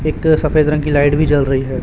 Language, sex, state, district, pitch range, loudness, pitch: Hindi, male, Chhattisgarh, Raipur, 145-155 Hz, -14 LUFS, 150 Hz